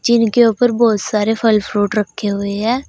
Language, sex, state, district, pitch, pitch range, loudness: Hindi, female, Uttar Pradesh, Saharanpur, 220 Hz, 205-235 Hz, -15 LUFS